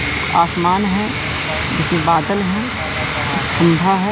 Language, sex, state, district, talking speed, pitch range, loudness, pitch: Hindi, male, Madhya Pradesh, Katni, 100 wpm, 165-195 Hz, -15 LUFS, 175 Hz